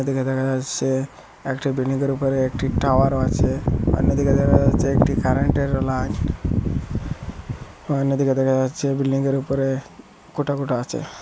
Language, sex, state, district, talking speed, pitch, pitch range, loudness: Bengali, male, Assam, Hailakandi, 140 wpm, 135 Hz, 130-135 Hz, -21 LUFS